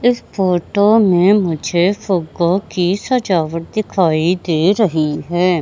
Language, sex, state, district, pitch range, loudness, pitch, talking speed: Hindi, male, Madhya Pradesh, Katni, 170-200 Hz, -15 LUFS, 180 Hz, 115 wpm